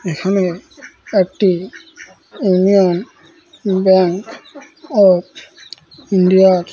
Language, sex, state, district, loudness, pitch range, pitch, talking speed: Bengali, male, West Bengal, Malda, -14 LUFS, 185-225 Hz, 190 Hz, 60 wpm